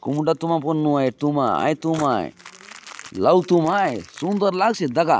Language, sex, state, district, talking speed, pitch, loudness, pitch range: Halbi, male, Chhattisgarh, Bastar, 210 wpm, 160 Hz, -20 LUFS, 145-175 Hz